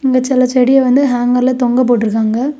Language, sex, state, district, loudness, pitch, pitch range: Tamil, female, Tamil Nadu, Kanyakumari, -12 LUFS, 255 Hz, 245-260 Hz